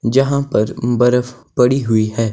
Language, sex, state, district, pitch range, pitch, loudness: Hindi, male, Himachal Pradesh, Shimla, 115-125 Hz, 125 Hz, -16 LUFS